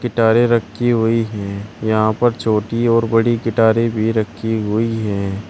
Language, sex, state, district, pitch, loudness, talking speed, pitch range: Hindi, male, Uttar Pradesh, Shamli, 115 Hz, -17 LUFS, 155 wpm, 110-115 Hz